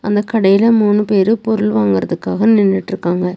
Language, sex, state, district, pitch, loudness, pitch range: Tamil, female, Tamil Nadu, Nilgiris, 200 Hz, -14 LUFS, 180-215 Hz